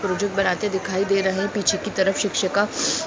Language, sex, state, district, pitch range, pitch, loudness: Hindi, female, Uttar Pradesh, Muzaffarnagar, 190-205 Hz, 195 Hz, -22 LUFS